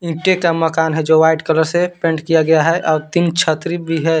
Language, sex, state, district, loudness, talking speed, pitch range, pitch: Hindi, male, Jharkhand, Palamu, -15 LUFS, 245 wpm, 160-170 Hz, 165 Hz